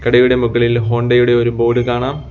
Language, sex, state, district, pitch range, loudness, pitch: Malayalam, male, Kerala, Kollam, 120-125 Hz, -14 LUFS, 120 Hz